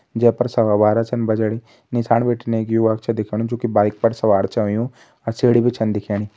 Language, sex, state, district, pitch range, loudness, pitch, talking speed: Hindi, male, Uttarakhand, Tehri Garhwal, 110-120 Hz, -19 LUFS, 115 Hz, 225 wpm